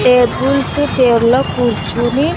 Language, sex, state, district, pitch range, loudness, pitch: Telugu, female, Andhra Pradesh, Sri Satya Sai, 240-275 Hz, -13 LUFS, 250 Hz